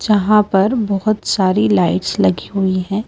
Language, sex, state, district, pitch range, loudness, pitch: Hindi, female, Madhya Pradesh, Bhopal, 190-215 Hz, -15 LUFS, 200 Hz